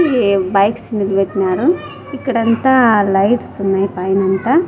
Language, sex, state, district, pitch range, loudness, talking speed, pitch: Telugu, female, Andhra Pradesh, Sri Satya Sai, 195-250 Hz, -15 LUFS, 90 wpm, 205 Hz